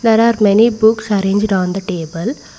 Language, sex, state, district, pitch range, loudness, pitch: English, female, Karnataka, Bangalore, 190-225 Hz, -14 LUFS, 210 Hz